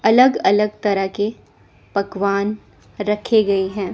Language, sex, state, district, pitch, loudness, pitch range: Hindi, female, Chandigarh, Chandigarh, 205 Hz, -19 LUFS, 200-215 Hz